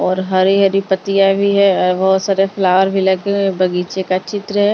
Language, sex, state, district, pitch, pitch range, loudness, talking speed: Hindi, female, Maharashtra, Mumbai Suburban, 195 Hz, 185-195 Hz, -15 LUFS, 215 wpm